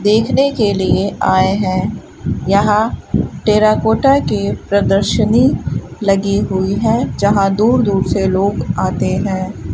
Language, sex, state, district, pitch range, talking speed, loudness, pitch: Hindi, female, Rajasthan, Bikaner, 190-215 Hz, 115 wpm, -15 LUFS, 200 Hz